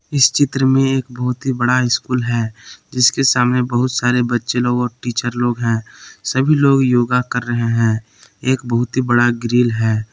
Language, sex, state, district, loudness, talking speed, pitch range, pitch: Hindi, male, Jharkhand, Palamu, -16 LUFS, 185 wpm, 120-130 Hz, 125 Hz